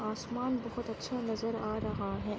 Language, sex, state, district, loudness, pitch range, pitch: Hindi, female, Uttarakhand, Uttarkashi, -36 LUFS, 220-245 Hz, 230 Hz